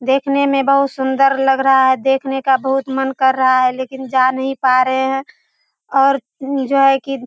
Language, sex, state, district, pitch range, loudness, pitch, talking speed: Hindi, female, Bihar, Purnia, 265-270 Hz, -15 LUFS, 270 Hz, 215 wpm